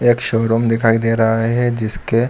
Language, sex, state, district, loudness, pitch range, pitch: Hindi, male, Jharkhand, Sahebganj, -16 LUFS, 115-120 Hz, 115 Hz